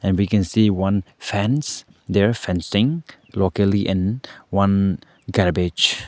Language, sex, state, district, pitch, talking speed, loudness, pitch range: English, male, Arunachal Pradesh, Lower Dibang Valley, 100 Hz, 110 wpm, -20 LUFS, 95-110 Hz